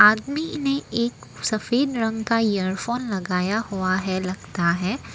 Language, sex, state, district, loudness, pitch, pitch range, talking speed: Hindi, female, Assam, Kamrup Metropolitan, -24 LUFS, 220 Hz, 185-240 Hz, 140 wpm